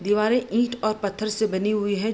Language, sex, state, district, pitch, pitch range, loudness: Hindi, female, Bihar, Gopalganj, 215 Hz, 205-220 Hz, -24 LUFS